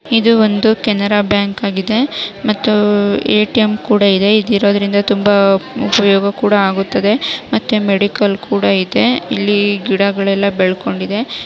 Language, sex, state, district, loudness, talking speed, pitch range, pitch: Kannada, female, Karnataka, Raichur, -13 LUFS, 115 wpm, 200-215 Hz, 205 Hz